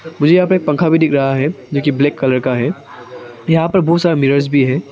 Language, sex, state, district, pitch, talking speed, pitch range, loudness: Hindi, male, Arunachal Pradesh, Papum Pare, 145 Hz, 255 wpm, 135-165 Hz, -14 LUFS